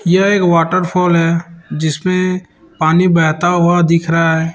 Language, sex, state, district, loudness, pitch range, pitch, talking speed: Hindi, male, Chhattisgarh, Raipur, -13 LUFS, 165-180 Hz, 170 Hz, 145 wpm